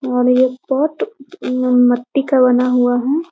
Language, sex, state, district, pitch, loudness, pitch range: Hindi, female, Bihar, Muzaffarpur, 255 Hz, -15 LUFS, 250-275 Hz